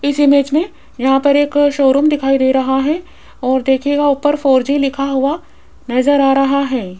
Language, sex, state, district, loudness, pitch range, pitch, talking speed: Hindi, female, Rajasthan, Jaipur, -14 LUFS, 265-285 Hz, 275 Hz, 190 wpm